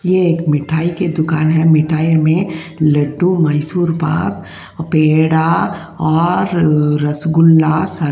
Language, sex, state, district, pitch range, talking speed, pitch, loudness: Hindi, female, Uttar Pradesh, Jyotiba Phule Nagar, 155-170 Hz, 120 wpm, 160 Hz, -14 LUFS